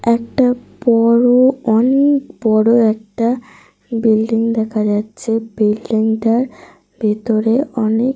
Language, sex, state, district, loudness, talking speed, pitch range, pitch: Bengali, female, Jharkhand, Sahebganj, -15 LUFS, 125 wpm, 220-245 Hz, 225 Hz